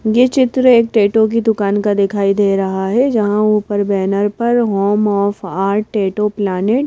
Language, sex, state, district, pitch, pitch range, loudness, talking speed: Hindi, female, Madhya Pradesh, Bhopal, 205 Hz, 200-225 Hz, -14 LUFS, 185 wpm